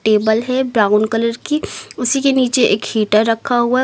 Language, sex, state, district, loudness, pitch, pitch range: Hindi, female, Uttar Pradesh, Lucknow, -16 LUFS, 235 Hz, 220-260 Hz